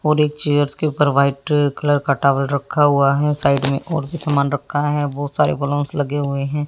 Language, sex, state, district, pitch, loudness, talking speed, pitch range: Hindi, female, Haryana, Jhajjar, 145 Hz, -18 LUFS, 225 wpm, 140-150 Hz